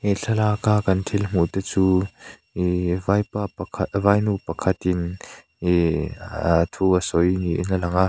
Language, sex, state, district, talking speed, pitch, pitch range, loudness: Mizo, male, Mizoram, Aizawl, 155 wpm, 95 Hz, 90-100 Hz, -22 LUFS